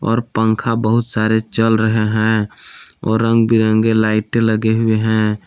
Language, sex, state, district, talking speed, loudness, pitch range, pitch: Hindi, male, Jharkhand, Palamu, 155 wpm, -16 LUFS, 110-115 Hz, 110 Hz